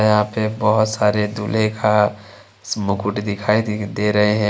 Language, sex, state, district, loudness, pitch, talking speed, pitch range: Hindi, male, Jharkhand, Deoghar, -19 LUFS, 105 Hz, 175 wpm, 105-110 Hz